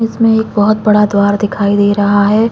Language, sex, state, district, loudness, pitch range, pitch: Hindi, female, Uttarakhand, Uttarkashi, -11 LUFS, 205-220 Hz, 210 Hz